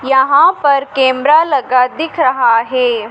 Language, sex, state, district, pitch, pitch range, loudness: Hindi, female, Madhya Pradesh, Dhar, 265 Hz, 250-285 Hz, -12 LUFS